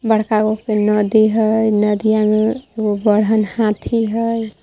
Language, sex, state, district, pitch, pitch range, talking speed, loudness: Magahi, female, Jharkhand, Palamu, 215 Hz, 210-220 Hz, 130 wpm, -16 LUFS